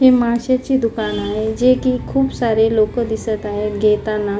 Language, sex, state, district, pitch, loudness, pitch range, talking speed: Marathi, female, Maharashtra, Pune, 220 Hz, -17 LUFS, 210-250 Hz, 165 wpm